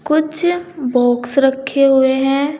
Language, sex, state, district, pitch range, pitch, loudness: Hindi, female, Uttar Pradesh, Saharanpur, 265-305 Hz, 275 Hz, -15 LUFS